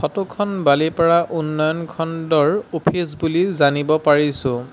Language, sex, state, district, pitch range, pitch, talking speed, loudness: Assamese, male, Assam, Sonitpur, 150-170 Hz, 160 Hz, 115 wpm, -18 LUFS